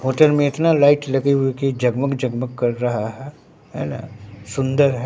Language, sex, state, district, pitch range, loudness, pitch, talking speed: Hindi, male, Bihar, Katihar, 125-140 Hz, -19 LUFS, 135 Hz, 200 wpm